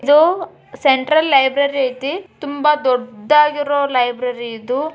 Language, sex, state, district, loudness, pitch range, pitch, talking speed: Kannada, male, Karnataka, Bijapur, -16 LUFS, 255-300 Hz, 280 Hz, 95 wpm